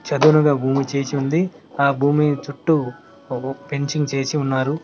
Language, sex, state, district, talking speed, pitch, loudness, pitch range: Telugu, male, Telangana, Mahabubabad, 125 wpm, 140 Hz, -20 LUFS, 135-150 Hz